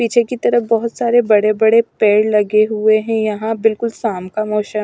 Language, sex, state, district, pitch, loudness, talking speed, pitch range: Hindi, female, Punjab, Pathankot, 220 Hz, -15 LUFS, 185 wpm, 215-230 Hz